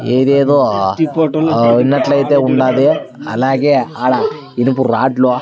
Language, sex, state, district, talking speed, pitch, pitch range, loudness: Telugu, male, Andhra Pradesh, Sri Satya Sai, 90 wpm, 130 Hz, 125-140 Hz, -13 LUFS